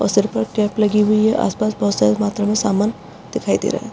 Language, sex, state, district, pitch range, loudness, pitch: Hindi, female, Uttarakhand, Uttarkashi, 205-215 Hz, -18 LUFS, 210 Hz